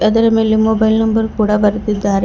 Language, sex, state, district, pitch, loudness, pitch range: Kannada, female, Karnataka, Bidar, 220 Hz, -14 LUFS, 210-220 Hz